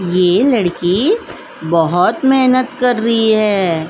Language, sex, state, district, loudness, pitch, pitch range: Hindi, female, Uttar Pradesh, Jalaun, -14 LUFS, 215 Hz, 175-255 Hz